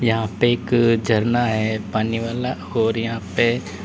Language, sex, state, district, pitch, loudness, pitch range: Hindi, male, Uttar Pradesh, Lalitpur, 115 Hz, -20 LUFS, 110-120 Hz